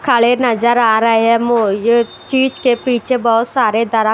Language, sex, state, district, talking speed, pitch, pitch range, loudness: Hindi, female, Bihar, West Champaran, 175 wpm, 235 Hz, 225-245 Hz, -14 LUFS